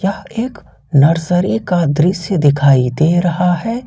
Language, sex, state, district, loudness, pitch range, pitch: Hindi, male, Jharkhand, Ranchi, -14 LUFS, 150-195 Hz, 175 Hz